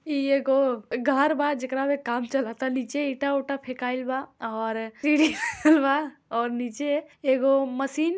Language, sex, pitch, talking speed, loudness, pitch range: Bhojpuri, female, 275 Hz, 170 wpm, -25 LUFS, 255-285 Hz